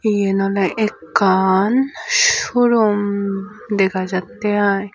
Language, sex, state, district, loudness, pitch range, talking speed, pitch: Chakma, female, Tripura, Unakoti, -17 LUFS, 195-225 Hz, 95 wpm, 205 Hz